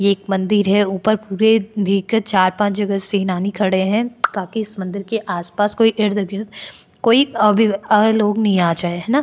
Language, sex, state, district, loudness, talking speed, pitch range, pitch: Hindi, female, Maharashtra, Chandrapur, -17 LUFS, 210 wpm, 195-215 Hz, 205 Hz